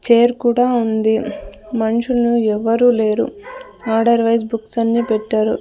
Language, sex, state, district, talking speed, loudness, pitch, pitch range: Telugu, female, Andhra Pradesh, Sri Satya Sai, 120 wpm, -16 LUFS, 230 Hz, 220-240 Hz